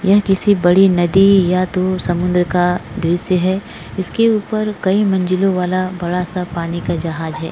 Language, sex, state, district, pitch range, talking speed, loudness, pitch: Hindi, female, Goa, North and South Goa, 175-195 Hz, 160 wpm, -16 LUFS, 185 Hz